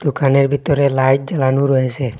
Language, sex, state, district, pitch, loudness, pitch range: Bengali, male, Assam, Hailakandi, 135 Hz, -15 LUFS, 130-140 Hz